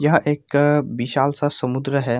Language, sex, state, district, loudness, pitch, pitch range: Hindi, male, Jharkhand, Sahebganj, -20 LUFS, 140 Hz, 135-145 Hz